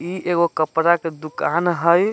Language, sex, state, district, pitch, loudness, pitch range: Bajjika, male, Bihar, Vaishali, 170 Hz, -19 LUFS, 165-175 Hz